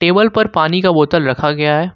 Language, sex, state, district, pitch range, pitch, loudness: Hindi, male, Jharkhand, Ranchi, 150-185 Hz, 165 Hz, -13 LUFS